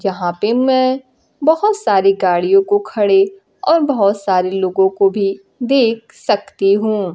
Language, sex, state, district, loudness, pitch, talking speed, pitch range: Hindi, female, Bihar, Kaimur, -15 LUFS, 205 Hz, 145 wpm, 195-260 Hz